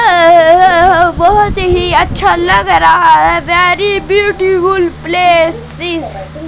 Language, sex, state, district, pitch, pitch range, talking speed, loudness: Hindi, female, Madhya Pradesh, Katni, 360 Hz, 345-385 Hz, 100 wpm, -8 LUFS